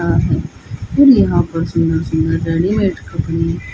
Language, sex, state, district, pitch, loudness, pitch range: Hindi, female, Haryana, Rohtak, 165 Hz, -15 LUFS, 165-195 Hz